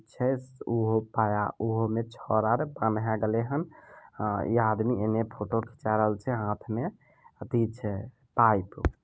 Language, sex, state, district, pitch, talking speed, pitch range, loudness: Maithili, male, Bihar, Samastipur, 110 Hz, 80 wpm, 110-120 Hz, -29 LUFS